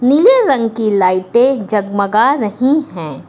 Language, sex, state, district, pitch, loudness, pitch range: Hindi, female, Uttar Pradesh, Lucknow, 230 Hz, -13 LUFS, 205-275 Hz